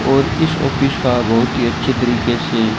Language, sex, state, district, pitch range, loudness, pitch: Hindi, male, Rajasthan, Bikaner, 120-135 Hz, -16 LUFS, 125 Hz